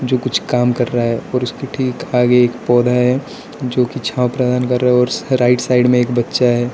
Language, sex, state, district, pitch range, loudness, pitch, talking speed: Hindi, male, Arunachal Pradesh, Lower Dibang Valley, 120-125 Hz, -16 LUFS, 125 Hz, 240 wpm